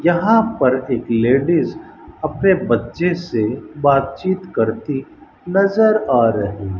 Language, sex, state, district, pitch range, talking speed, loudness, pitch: Hindi, male, Rajasthan, Bikaner, 120-180 Hz, 115 wpm, -17 LUFS, 135 Hz